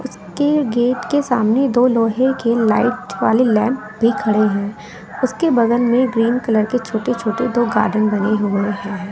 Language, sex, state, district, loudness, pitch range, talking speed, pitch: Hindi, female, Bihar, West Champaran, -17 LUFS, 215-250 Hz, 170 wpm, 235 Hz